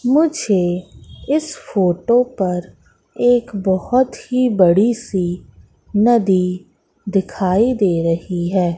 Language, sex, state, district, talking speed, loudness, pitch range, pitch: Hindi, female, Madhya Pradesh, Katni, 95 wpm, -17 LUFS, 180-245 Hz, 195 Hz